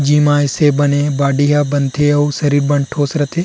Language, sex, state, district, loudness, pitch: Chhattisgarhi, male, Chhattisgarh, Rajnandgaon, -14 LUFS, 145 Hz